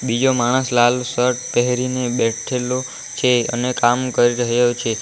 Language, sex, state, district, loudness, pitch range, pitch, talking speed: Gujarati, male, Gujarat, Valsad, -18 LUFS, 120-125 Hz, 125 Hz, 145 wpm